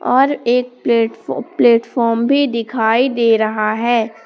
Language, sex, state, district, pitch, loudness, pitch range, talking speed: Hindi, female, Jharkhand, Palamu, 235 Hz, -15 LUFS, 225-250 Hz, 125 wpm